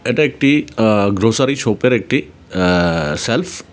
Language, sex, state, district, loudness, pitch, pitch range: Bengali, male, Tripura, West Tripura, -16 LUFS, 115 Hz, 95-135 Hz